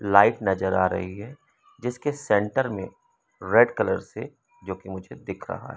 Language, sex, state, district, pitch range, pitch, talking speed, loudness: Hindi, male, Madhya Pradesh, Umaria, 95-145 Hz, 105 Hz, 155 wpm, -24 LUFS